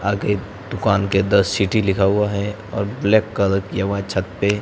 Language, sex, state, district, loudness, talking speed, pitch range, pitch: Hindi, male, Rajasthan, Barmer, -19 LUFS, 205 wpm, 100-105 Hz, 100 Hz